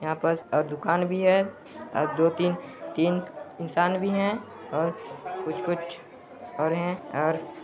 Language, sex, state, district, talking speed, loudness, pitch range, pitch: Hindi, male, Chhattisgarh, Sarguja, 135 wpm, -27 LUFS, 165-190 Hz, 175 Hz